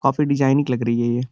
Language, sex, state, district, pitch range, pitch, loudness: Hindi, male, Uttar Pradesh, Gorakhpur, 120-140 Hz, 130 Hz, -19 LUFS